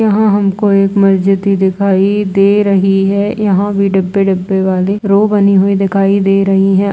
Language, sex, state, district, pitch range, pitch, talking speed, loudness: Hindi, female, Uttar Pradesh, Budaun, 195-200 Hz, 195 Hz, 175 wpm, -11 LUFS